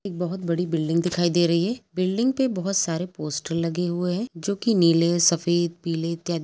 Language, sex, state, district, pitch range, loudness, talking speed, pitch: Hindi, female, Chhattisgarh, Kabirdham, 165-185 Hz, -23 LUFS, 205 wpm, 175 Hz